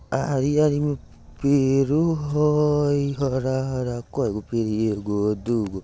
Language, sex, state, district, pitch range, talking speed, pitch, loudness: Bajjika, male, Bihar, Vaishali, 115-145 Hz, 90 wpm, 135 Hz, -23 LUFS